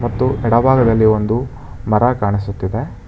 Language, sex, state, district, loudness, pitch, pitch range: Kannada, male, Karnataka, Bangalore, -16 LUFS, 110 Hz, 100-120 Hz